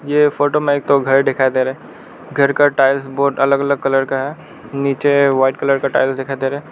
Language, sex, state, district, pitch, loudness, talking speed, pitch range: Hindi, male, Arunachal Pradesh, Lower Dibang Valley, 140 Hz, -16 LUFS, 240 wpm, 135-140 Hz